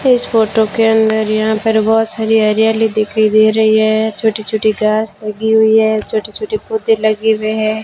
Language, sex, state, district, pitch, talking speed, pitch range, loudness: Hindi, female, Rajasthan, Bikaner, 220 Hz, 190 wpm, 215-220 Hz, -13 LUFS